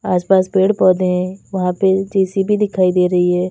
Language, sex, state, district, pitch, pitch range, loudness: Hindi, female, Uttar Pradesh, Lalitpur, 185 Hz, 180-195 Hz, -15 LUFS